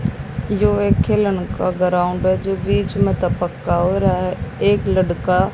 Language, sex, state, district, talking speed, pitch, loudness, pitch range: Hindi, female, Haryana, Jhajjar, 175 wpm, 185 Hz, -18 LUFS, 180-195 Hz